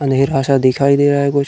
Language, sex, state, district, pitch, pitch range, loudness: Hindi, male, Uttar Pradesh, Muzaffarnagar, 140 Hz, 135-140 Hz, -14 LUFS